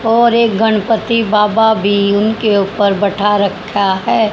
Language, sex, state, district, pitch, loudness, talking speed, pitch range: Hindi, female, Haryana, Charkhi Dadri, 210 Hz, -13 LUFS, 140 wpm, 200-225 Hz